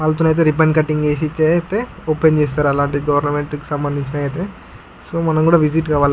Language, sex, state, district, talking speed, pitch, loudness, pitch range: Telugu, male, Andhra Pradesh, Guntur, 165 wpm, 155 Hz, -17 LUFS, 145-160 Hz